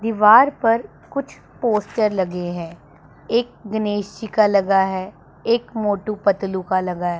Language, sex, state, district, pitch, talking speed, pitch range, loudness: Hindi, female, Punjab, Pathankot, 205 Hz, 140 wpm, 180-220 Hz, -20 LUFS